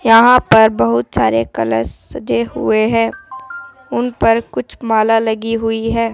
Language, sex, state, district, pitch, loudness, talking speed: Hindi, male, Rajasthan, Jaipur, 225 Hz, -14 LUFS, 145 wpm